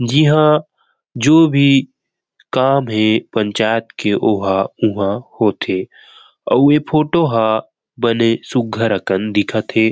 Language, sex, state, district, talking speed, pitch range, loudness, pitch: Chhattisgarhi, male, Chhattisgarh, Rajnandgaon, 115 wpm, 110-150 Hz, -15 LUFS, 120 Hz